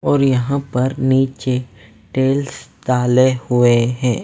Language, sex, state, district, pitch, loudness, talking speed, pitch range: Hindi, male, Delhi, New Delhi, 125 Hz, -17 LUFS, 115 wpm, 120-130 Hz